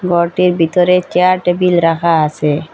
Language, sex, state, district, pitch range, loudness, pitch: Bengali, female, Assam, Hailakandi, 165-180 Hz, -13 LUFS, 175 Hz